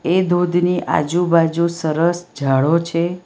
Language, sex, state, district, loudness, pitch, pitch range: Gujarati, female, Gujarat, Valsad, -17 LUFS, 170 Hz, 165-175 Hz